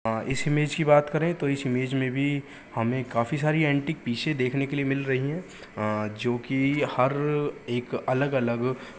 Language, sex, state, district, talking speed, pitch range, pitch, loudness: Hindi, male, Uttar Pradesh, Gorakhpur, 180 wpm, 125-145 Hz, 135 Hz, -26 LUFS